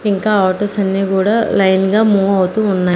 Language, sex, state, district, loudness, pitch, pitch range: Telugu, female, Andhra Pradesh, Manyam, -14 LUFS, 195 Hz, 190-210 Hz